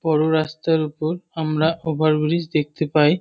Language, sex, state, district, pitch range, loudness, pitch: Bengali, male, West Bengal, North 24 Parganas, 155-160 Hz, -21 LUFS, 155 Hz